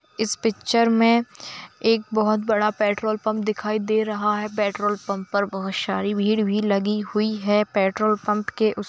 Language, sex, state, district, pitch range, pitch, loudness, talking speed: Hindi, female, Bihar, Kishanganj, 205-215 Hz, 210 Hz, -22 LUFS, 180 wpm